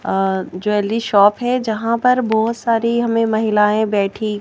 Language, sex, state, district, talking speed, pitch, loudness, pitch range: Hindi, female, Madhya Pradesh, Bhopal, 150 wpm, 220 Hz, -17 LUFS, 210-230 Hz